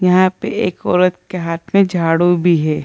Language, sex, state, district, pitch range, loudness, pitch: Hindi, female, Bihar, Gaya, 165-185 Hz, -15 LUFS, 180 Hz